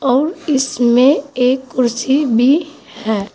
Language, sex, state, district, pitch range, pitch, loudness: Hindi, female, Uttar Pradesh, Saharanpur, 240-280 Hz, 260 Hz, -15 LUFS